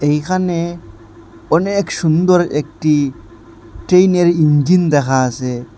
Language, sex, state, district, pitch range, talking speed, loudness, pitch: Bengali, male, Assam, Hailakandi, 120-175 Hz, 85 wpm, -15 LUFS, 150 Hz